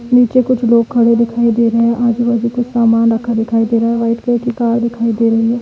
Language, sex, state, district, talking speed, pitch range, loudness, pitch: Hindi, female, Uttar Pradesh, Varanasi, 265 wpm, 230-240 Hz, -13 LUFS, 235 Hz